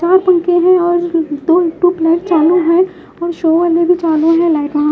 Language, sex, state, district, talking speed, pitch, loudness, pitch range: Hindi, female, Haryana, Jhajjar, 205 wpm, 340 Hz, -12 LUFS, 325-355 Hz